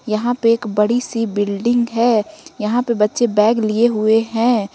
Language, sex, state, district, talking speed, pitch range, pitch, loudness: Hindi, female, Jharkhand, Ranchi, 175 wpm, 210-235 Hz, 225 Hz, -17 LUFS